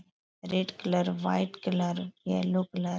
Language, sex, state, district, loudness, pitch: Hindi, female, Uttar Pradesh, Etah, -30 LUFS, 180 Hz